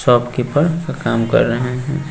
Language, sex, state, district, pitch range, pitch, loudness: Hindi, female, Bihar, West Champaran, 120-150 Hz, 125 Hz, -17 LUFS